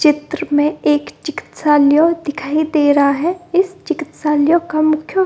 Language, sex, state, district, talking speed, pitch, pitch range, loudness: Hindi, female, Bihar, Gopalganj, 150 wpm, 310 Hz, 295-335 Hz, -15 LUFS